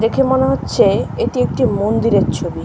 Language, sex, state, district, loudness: Bengali, female, West Bengal, Kolkata, -16 LUFS